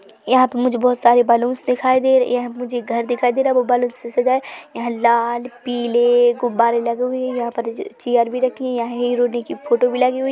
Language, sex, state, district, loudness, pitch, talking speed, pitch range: Hindi, female, Chhattisgarh, Bilaspur, -18 LUFS, 245 Hz, 250 wpm, 235-250 Hz